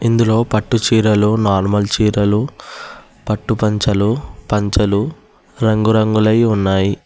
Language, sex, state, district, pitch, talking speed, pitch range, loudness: Telugu, male, Telangana, Hyderabad, 110 Hz, 85 wpm, 105-115 Hz, -15 LUFS